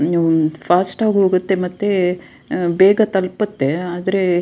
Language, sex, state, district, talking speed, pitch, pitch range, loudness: Kannada, female, Karnataka, Dakshina Kannada, 135 wpm, 185 Hz, 175-195 Hz, -17 LUFS